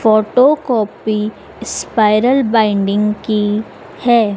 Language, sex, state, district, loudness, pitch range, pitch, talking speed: Hindi, female, Madhya Pradesh, Dhar, -15 LUFS, 210-240 Hz, 215 Hz, 80 wpm